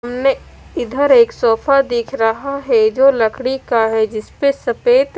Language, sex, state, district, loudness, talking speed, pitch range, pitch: Hindi, female, Punjab, Kapurthala, -15 LUFS, 150 wpm, 230-280 Hz, 265 Hz